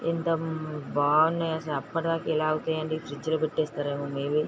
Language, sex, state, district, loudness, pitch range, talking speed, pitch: Telugu, female, Andhra Pradesh, Srikakulam, -28 LUFS, 145-160 Hz, 105 wpm, 155 Hz